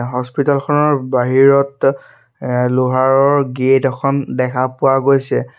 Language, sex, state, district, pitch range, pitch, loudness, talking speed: Assamese, male, Assam, Sonitpur, 130-140 Hz, 135 Hz, -15 LUFS, 85 wpm